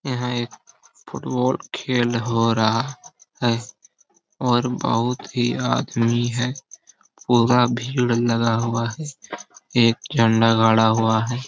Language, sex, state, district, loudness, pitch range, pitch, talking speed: Hindi, male, Jharkhand, Sahebganj, -20 LUFS, 115-125 Hz, 120 Hz, 115 wpm